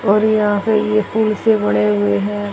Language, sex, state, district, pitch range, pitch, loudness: Hindi, female, Haryana, Charkhi Dadri, 200-215 Hz, 210 Hz, -16 LUFS